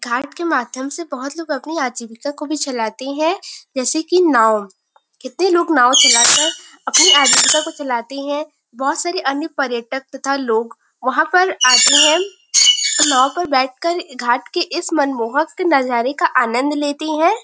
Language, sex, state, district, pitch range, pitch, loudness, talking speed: Hindi, female, Uttar Pradesh, Varanasi, 255-330 Hz, 285 Hz, -15 LUFS, 170 wpm